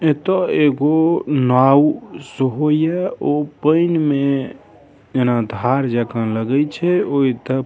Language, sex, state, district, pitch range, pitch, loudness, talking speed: Maithili, male, Bihar, Darbhanga, 130-155 Hz, 140 Hz, -17 LUFS, 95 wpm